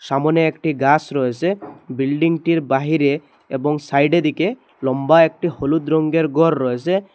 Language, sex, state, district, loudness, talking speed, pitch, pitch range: Bengali, male, Assam, Hailakandi, -18 LUFS, 125 wpm, 155 Hz, 140-165 Hz